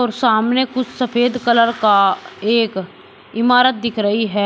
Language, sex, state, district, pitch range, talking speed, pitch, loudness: Hindi, male, Uttar Pradesh, Shamli, 215-245 Hz, 150 wpm, 230 Hz, -16 LUFS